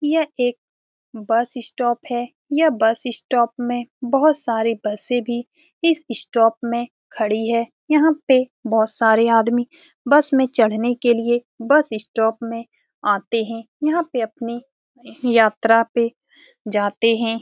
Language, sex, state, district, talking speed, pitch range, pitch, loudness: Hindi, female, Bihar, Saran, 140 wpm, 225-260 Hz, 240 Hz, -19 LUFS